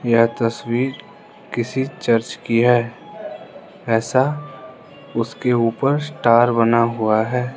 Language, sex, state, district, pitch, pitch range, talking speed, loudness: Hindi, male, Arunachal Pradesh, Lower Dibang Valley, 120 Hz, 115-135 Hz, 105 wpm, -19 LUFS